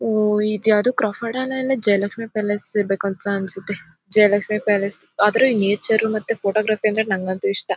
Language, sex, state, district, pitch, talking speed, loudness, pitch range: Kannada, female, Karnataka, Mysore, 210 Hz, 145 wpm, -19 LUFS, 200-220 Hz